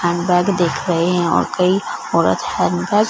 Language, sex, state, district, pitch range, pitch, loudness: Hindi, female, Punjab, Fazilka, 175-185 Hz, 180 Hz, -17 LUFS